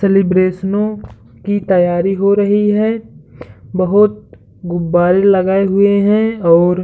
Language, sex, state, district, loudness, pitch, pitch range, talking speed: Hindi, male, Uttar Pradesh, Hamirpur, -13 LUFS, 190 Hz, 175-205 Hz, 115 wpm